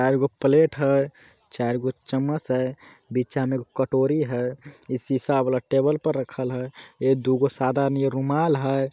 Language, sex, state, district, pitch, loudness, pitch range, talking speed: Magahi, male, Bihar, Jamui, 135 Hz, -24 LUFS, 130-140 Hz, 190 wpm